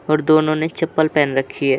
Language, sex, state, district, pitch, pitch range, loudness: Hindi, male, Uttar Pradesh, Jalaun, 155 Hz, 145-155 Hz, -17 LUFS